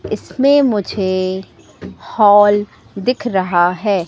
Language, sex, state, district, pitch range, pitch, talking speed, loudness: Hindi, female, Madhya Pradesh, Katni, 185-225 Hz, 205 Hz, 90 wpm, -15 LUFS